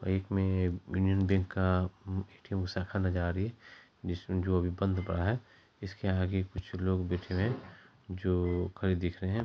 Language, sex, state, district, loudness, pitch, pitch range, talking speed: Maithili, male, Bihar, Supaul, -33 LUFS, 95 Hz, 90-95 Hz, 185 wpm